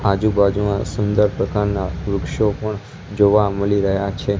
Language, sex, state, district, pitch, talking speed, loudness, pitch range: Gujarati, male, Gujarat, Gandhinagar, 100 Hz, 120 wpm, -19 LUFS, 100-105 Hz